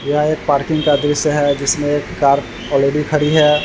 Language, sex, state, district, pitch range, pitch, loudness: Hindi, male, Bihar, Vaishali, 140-150 Hz, 145 Hz, -16 LUFS